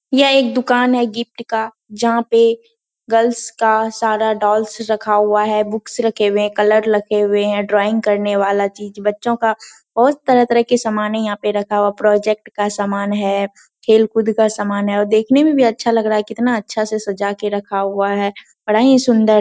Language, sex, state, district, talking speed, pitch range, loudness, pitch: Hindi, female, Bihar, Purnia, 205 wpm, 205-230 Hz, -16 LUFS, 215 Hz